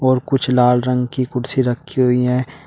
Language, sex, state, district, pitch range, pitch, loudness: Hindi, male, Uttar Pradesh, Shamli, 125-130 Hz, 125 Hz, -17 LUFS